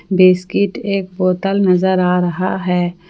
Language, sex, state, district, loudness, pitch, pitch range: Hindi, female, Jharkhand, Palamu, -15 LUFS, 185 Hz, 180-190 Hz